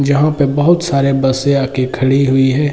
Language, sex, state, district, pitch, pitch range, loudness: Hindi, male, Bihar, Sitamarhi, 140 Hz, 135-145 Hz, -13 LUFS